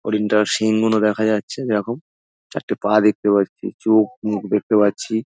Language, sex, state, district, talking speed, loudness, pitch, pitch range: Bengali, male, West Bengal, Dakshin Dinajpur, 150 wpm, -19 LUFS, 105 Hz, 105-110 Hz